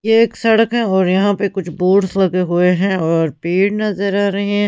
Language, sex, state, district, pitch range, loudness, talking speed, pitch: Hindi, female, Punjab, Pathankot, 180-205 Hz, -15 LUFS, 230 wpm, 195 Hz